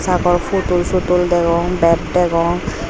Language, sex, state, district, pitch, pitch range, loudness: Chakma, female, Tripura, Unakoti, 175 Hz, 170-180 Hz, -16 LUFS